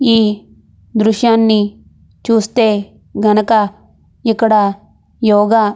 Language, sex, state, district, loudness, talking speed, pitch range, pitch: Telugu, female, Andhra Pradesh, Anantapur, -14 LUFS, 65 wpm, 210-225 Hz, 215 Hz